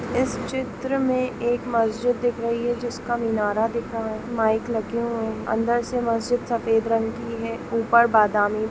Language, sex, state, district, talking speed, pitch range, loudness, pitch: Hindi, female, Jharkhand, Jamtara, 185 wpm, 225-240 Hz, -23 LUFS, 235 Hz